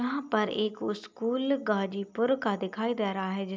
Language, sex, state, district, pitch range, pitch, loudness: Hindi, female, Uttar Pradesh, Ghazipur, 195-240 Hz, 215 Hz, -30 LUFS